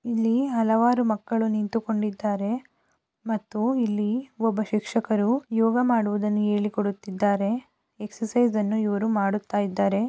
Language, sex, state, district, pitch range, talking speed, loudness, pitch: Kannada, female, Karnataka, Raichur, 210-230 Hz, 90 wpm, -25 LUFS, 215 Hz